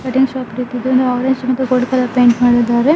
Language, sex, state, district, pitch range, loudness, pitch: Kannada, female, Karnataka, Bellary, 245-260 Hz, -14 LUFS, 255 Hz